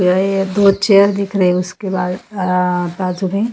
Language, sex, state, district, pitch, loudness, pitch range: Hindi, female, Haryana, Charkhi Dadri, 190 Hz, -15 LUFS, 180-200 Hz